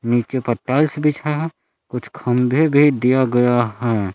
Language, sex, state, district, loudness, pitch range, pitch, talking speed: Hindi, male, Jharkhand, Palamu, -18 LUFS, 120-150 Hz, 125 Hz, 160 wpm